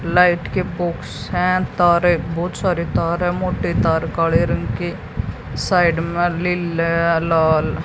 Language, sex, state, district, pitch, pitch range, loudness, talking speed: Hindi, female, Haryana, Jhajjar, 170 Hz, 165-180 Hz, -19 LUFS, 145 wpm